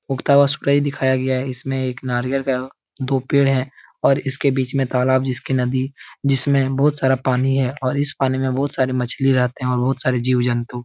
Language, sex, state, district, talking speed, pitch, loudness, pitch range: Hindi, male, Uttar Pradesh, Etah, 220 wpm, 130 Hz, -19 LUFS, 130-135 Hz